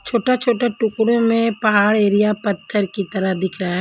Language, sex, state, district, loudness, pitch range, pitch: Hindi, female, Punjab, Kapurthala, -18 LUFS, 200-230 Hz, 210 Hz